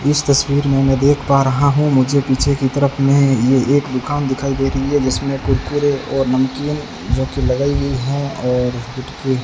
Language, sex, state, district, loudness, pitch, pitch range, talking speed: Hindi, male, Rajasthan, Bikaner, -16 LUFS, 135 Hz, 130-140 Hz, 185 wpm